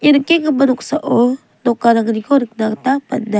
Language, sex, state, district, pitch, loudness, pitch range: Garo, female, Meghalaya, South Garo Hills, 250 Hz, -15 LUFS, 225-280 Hz